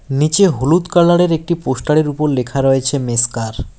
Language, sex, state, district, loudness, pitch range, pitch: Bengali, male, West Bengal, Alipurduar, -15 LUFS, 130-165 Hz, 145 Hz